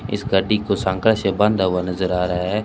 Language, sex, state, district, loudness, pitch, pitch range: Hindi, male, Rajasthan, Bikaner, -19 LUFS, 95 Hz, 90-105 Hz